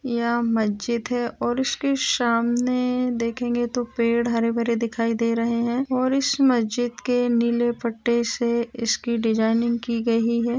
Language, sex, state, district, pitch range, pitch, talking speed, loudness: Hindi, female, Bihar, Lakhisarai, 230-245 Hz, 235 Hz, 145 wpm, -23 LUFS